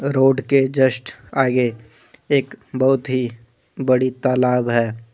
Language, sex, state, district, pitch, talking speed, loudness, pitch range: Hindi, male, Jharkhand, Deoghar, 130 Hz, 115 wpm, -19 LUFS, 120-135 Hz